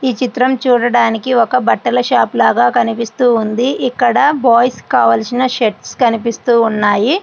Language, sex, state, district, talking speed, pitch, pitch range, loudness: Telugu, female, Andhra Pradesh, Guntur, 115 wpm, 240 Hz, 230-255 Hz, -13 LUFS